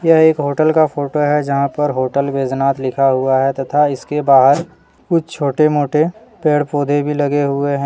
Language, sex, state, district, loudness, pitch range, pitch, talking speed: Hindi, male, Jharkhand, Deoghar, -15 LUFS, 140-150 Hz, 145 Hz, 190 wpm